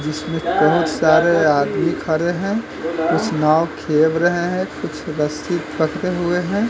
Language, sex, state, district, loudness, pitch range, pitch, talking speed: Hindi, male, Uttar Pradesh, Gorakhpur, -18 LUFS, 155-175 Hz, 165 Hz, 145 wpm